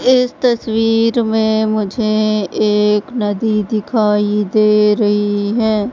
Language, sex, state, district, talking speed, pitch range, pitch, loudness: Hindi, female, Madhya Pradesh, Katni, 100 wpm, 210-225 Hz, 215 Hz, -15 LUFS